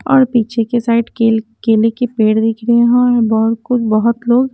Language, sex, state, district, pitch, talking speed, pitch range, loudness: Hindi, female, Haryana, Jhajjar, 230 Hz, 185 wpm, 225-240 Hz, -13 LUFS